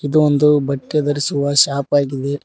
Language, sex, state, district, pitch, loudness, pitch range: Kannada, male, Karnataka, Koppal, 145 Hz, -16 LUFS, 140-150 Hz